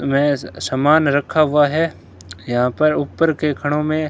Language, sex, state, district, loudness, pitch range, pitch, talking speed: Hindi, male, Rajasthan, Bikaner, -18 LUFS, 130-155 Hz, 145 Hz, 160 wpm